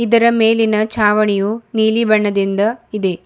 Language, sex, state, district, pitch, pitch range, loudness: Kannada, female, Karnataka, Bidar, 215 Hz, 210-225 Hz, -15 LUFS